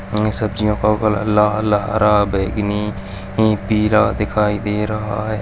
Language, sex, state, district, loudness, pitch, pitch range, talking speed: Hindi, male, Uttarakhand, Tehri Garhwal, -17 LUFS, 105 Hz, 105-110 Hz, 120 wpm